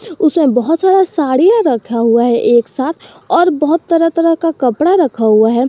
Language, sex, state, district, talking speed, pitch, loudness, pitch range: Hindi, male, Jharkhand, Garhwa, 190 wpm, 310 Hz, -12 LUFS, 240-345 Hz